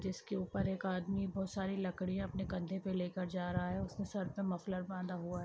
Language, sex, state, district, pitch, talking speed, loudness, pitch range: Hindi, female, Chhattisgarh, Sarguja, 185 Hz, 220 wpm, -40 LUFS, 180-195 Hz